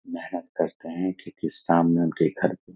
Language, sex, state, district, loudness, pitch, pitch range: Hindi, male, Bihar, Saharsa, -26 LUFS, 90 Hz, 85-95 Hz